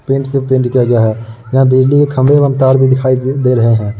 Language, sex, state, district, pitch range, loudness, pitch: Hindi, male, Uttar Pradesh, Muzaffarnagar, 120-135 Hz, -11 LUFS, 130 Hz